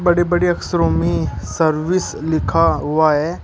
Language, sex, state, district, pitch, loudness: Hindi, male, Uttar Pradesh, Shamli, 155 Hz, -17 LUFS